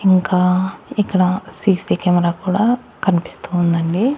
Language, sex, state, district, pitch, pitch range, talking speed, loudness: Telugu, male, Andhra Pradesh, Annamaya, 185 Hz, 180-200 Hz, 100 wpm, -17 LUFS